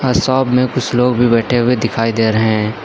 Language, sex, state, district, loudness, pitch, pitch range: Hindi, male, Uttar Pradesh, Lucknow, -14 LUFS, 120 Hz, 115-125 Hz